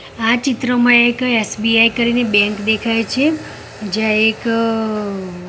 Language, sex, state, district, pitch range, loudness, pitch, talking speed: Gujarati, female, Gujarat, Gandhinagar, 215-240 Hz, -15 LUFS, 225 Hz, 120 wpm